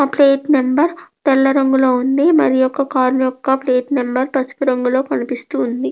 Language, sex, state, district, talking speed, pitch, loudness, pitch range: Telugu, female, Andhra Pradesh, Krishna, 160 wpm, 265 Hz, -16 LUFS, 255-275 Hz